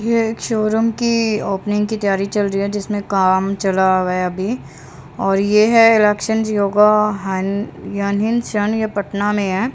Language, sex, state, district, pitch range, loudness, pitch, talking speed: Hindi, female, Haryana, Rohtak, 195-220 Hz, -17 LUFS, 205 Hz, 155 wpm